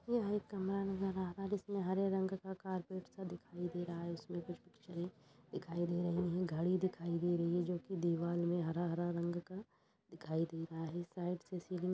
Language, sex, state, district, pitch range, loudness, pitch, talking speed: Hindi, female, Uttar Pradesh, Budaun, 170-190 Hz, -40 LUFS, 175 Hz, 215 wpm